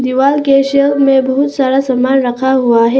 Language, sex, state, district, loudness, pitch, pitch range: Hindi, female, Arunachal Pradesh, Papum Pare, -11 LUFS, 265 Hz, 255-275 Hz